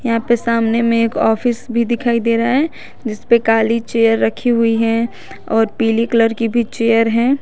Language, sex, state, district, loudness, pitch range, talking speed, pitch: Hindi, female, Jharkhand, Garhwa, -15 LUFS, 225-235 Hz, 200 wpm, 230 Hz